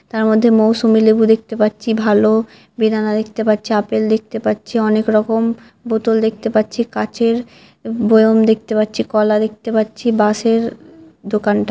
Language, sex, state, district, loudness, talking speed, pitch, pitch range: Bengali, female, West Bengal, Dakshin Dinajpur, -15 LUFS, 155 wpm, 220 Hz, 215-225 Hz